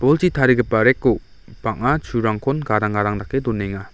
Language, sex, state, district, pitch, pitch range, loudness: Garo, male, Meghalaya, West Garo Hills, 120 Hz, 105-135 Hz, -19 LUFS